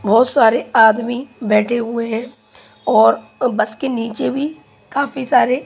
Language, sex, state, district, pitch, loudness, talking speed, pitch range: Hindi, female, Punjab, Pathankot, 240 Hz, -16 LUFS, 140 wpm, 225-260 Hz